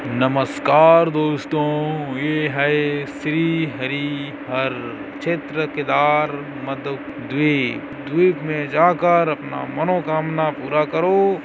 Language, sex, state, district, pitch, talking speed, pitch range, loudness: Chhattisgarhi, male, Chhattisgarh, Korba, 150 Hz, 95 wpm, 145-155 Hz, -20 LUFS